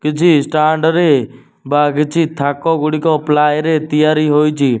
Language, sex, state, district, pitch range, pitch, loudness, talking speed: Odia, male, Odisha, Nuapada, 150-155 Hz, 150 Hz, -13 LUFS, 150 wpm